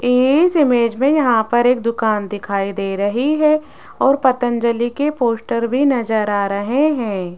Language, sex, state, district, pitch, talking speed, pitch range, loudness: Hindi, female, Rajasthan, Jaipur, 240 Hz, 160 wpm, 215-270 Hz, -17 LUFS